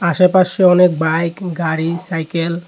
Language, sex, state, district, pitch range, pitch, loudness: Bengali, male, Tripura, West Tripura, 165-180 Hz, 170 Hz, -15 LUFS